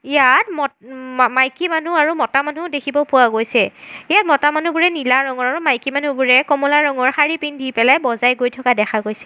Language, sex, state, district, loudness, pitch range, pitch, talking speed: Assamese, female, Assam, Sonitpur, -16 LUFS, 255-295 Hz, 275 Hz, 190 wpm